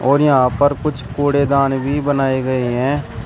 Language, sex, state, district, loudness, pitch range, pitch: Hindi, male, Uttar Pradesh, Shamli, -16 LUFS, 130-145 Hz, 135 Hz